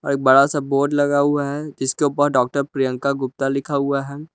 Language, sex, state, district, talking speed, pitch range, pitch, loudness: Hindi, male, Jharkhand, Palamu, 205 wpm, 135-145 Hz, 140 Hz, -19 LUFS